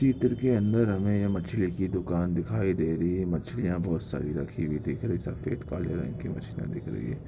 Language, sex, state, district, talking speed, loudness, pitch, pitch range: Hindi, male, Bihar, Samastipur, 230 wpm, -29 LUFS, 90 Hz, 85-105 Hz